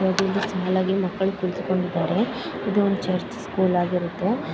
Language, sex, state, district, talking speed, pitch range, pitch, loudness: Kannada, female, Karnataka, Bellary, 120 wpm, 185-195 Hz, 190 Hz, -24 LUFS